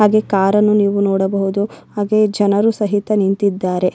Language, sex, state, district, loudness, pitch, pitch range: Kannada, female, Karnataka, Bellary, -16 LUFS, 205 Hz, 195-210 Hz